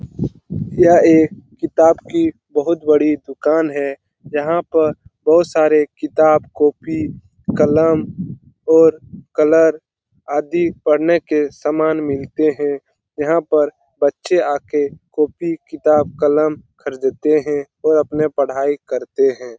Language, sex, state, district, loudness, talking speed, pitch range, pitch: Hindi, male, Bihar, Lakhisarai, -16 LUFS, 115 wpm, 145-160 Hz, 155 Hz